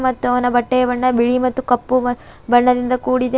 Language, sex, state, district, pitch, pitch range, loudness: Kannada, female, Karnataka, Bidar, 250 Hz, 245-255 Hz, -17 LUFS